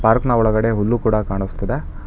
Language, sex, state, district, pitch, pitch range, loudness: Kannada, male, Karnataka, Bangalore, 110 Hz, 95-115 Hz, -18 LUFS